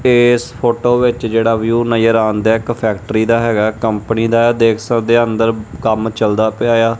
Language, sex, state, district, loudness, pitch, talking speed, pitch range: Punjabi, male, Punjab, Kapurthala, -14 LUFS, 115 Hz, 215 wpm, 110-120 Hz